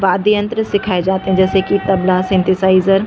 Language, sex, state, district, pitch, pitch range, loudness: Hindi, female, Chhattisgarh, Bastar, 190 Hz, 185-200 Hz, -14 LUFS